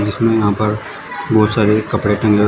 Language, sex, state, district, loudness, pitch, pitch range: Hindi, male, Uttar Pradesh, Shamli, -15 LUFS, 105 Hz, 105-110 Hz